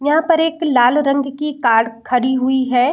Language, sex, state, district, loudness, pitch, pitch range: Hindi, female, Bihar, Saran, -16 LUFS, 265 Hz, 245-300 Hz